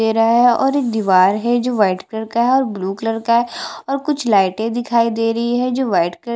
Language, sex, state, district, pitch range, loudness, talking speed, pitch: Hindi, female, Chhattisgarh, Bastar, 220-245 Hz, -17 LUFS, 265 wpm, 230 Hz